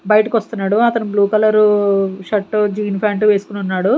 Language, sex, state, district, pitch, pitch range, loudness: Telugu, female, Andhra Pradesh, Sri Satya Sai, 210 Hz, 200-215 Hz, -16 LUFS